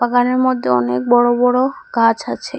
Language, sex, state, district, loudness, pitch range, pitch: Bengali, female, Assam, Hailakandi, -15 LUFS, 230-255 Hz, 245 Hz